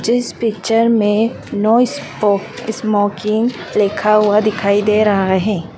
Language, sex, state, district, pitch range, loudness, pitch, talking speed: Hindi, female, Madhya Pradesh, Dhar, 205-225 Hz, -15 LUFS, 210 Hz, 125 wpm